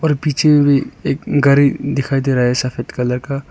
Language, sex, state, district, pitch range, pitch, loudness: Hindi, male, Arunachal Pradesh, Lower Dibang Valley, 130-145 Hz, 140 Hz, -16 LUFS